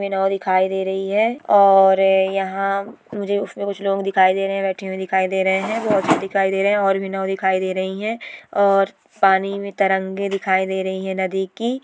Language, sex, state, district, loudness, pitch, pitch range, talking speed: Hindi, female, Bihar, Gopalganj, -19 LUFS, 195 Hz, 190-200 Hz, 230 wpm